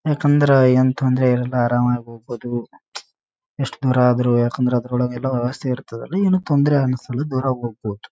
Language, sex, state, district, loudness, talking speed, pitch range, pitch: Kannada, male, Karnataka, Raichur, -19 LUFS, 140 wpm, 120-135 Hz, 125 Hz